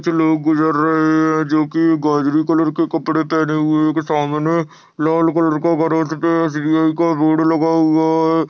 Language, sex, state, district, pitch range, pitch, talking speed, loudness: Hindi, male, Maharashtra, Sindhudurg, 155-165 Hz, 160 Hz, 175 wpm, -16 LUFS